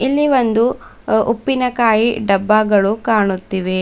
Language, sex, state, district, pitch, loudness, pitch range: Kannada, female, Karnataka, Bidar, 220 Hz, -15 LUFS, 200-240 Hz